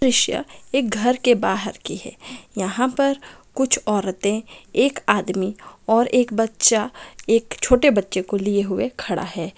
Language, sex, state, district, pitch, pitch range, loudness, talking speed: Hindi, female, Chhattisgarh, Raigarh, 225 Hz, 200-255 Hz, -20 LUFS, 150 wpm